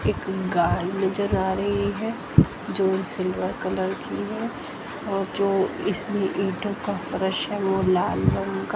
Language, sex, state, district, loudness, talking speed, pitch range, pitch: Hindi, female, Haryana, Jhajjar, -25 LUFS, 150 wpm, 190-200 Hz, 195 Hz